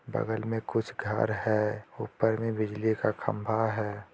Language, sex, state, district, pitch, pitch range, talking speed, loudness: Hindi, male, Jharkhand, Jamtara, 110 Hz, 105-110 Hz, 160 wpm, -30 LUFS